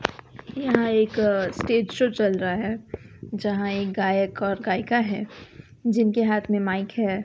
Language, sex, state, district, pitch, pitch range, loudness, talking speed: Hindi, female, Bihar, West Champaran, 210 Hz, 195-230 Hz, -24 LUFS, 150 wpm